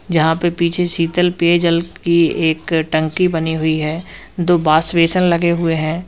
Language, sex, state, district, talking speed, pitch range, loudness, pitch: Hindi, male, Uttar Pradesh, Lalitpur, 180 wpm, 160-175 Hz, -16 LUFS, 170 Hz